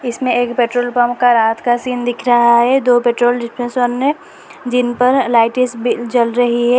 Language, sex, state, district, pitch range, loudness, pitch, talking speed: Hindi, female, Uttar Pradesh, Lalitpur, 240-250 Hz, -14 LUFS, 245 Hz, 170 wpm